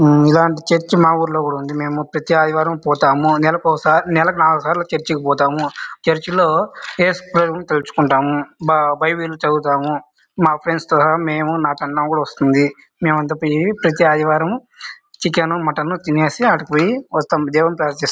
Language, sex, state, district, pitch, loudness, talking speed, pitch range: Telugu, male, Andhra Pradesh, Anantapur, 155 Hz, -16 LUFS, 150 wpm, 150-165 Hz